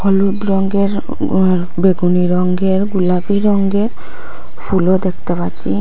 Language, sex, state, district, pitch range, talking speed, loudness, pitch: Bengali, female, Assam, Hailakandi, 180-200 Hz, 95 wpm, -15 LUFS, 190 Hz